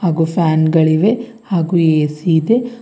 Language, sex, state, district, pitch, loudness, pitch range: Kannada, female, Karnataka, Bidar, 170 Hz, -15 LUFS, 160-220 Hz